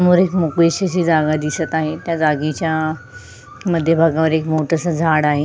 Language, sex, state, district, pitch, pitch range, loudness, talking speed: Marathi, female, Maharashtra, Sindhudurg, 160 Hz, 155-165 Hz, -17 LUFS, 185 wpm